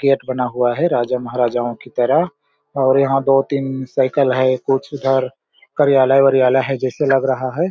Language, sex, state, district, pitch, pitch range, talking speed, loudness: Hindi, male, Chhattisgarh, Balrampur, 135 Hz, 130-140 Hz, 170 wpm, -17 LUFS